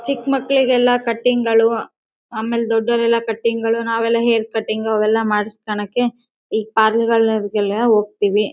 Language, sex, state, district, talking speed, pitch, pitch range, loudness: Kannada, female, Karnataka, Bellary, 115 wpm, 225 Hz, 220-235 Hz, -18 LUFS